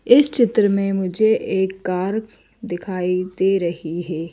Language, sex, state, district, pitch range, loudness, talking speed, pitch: Hindi, female, Madhya Pradesh, Bhopal, 180-215 Hz, -20 LUFS, 140 wpm, 190 Hz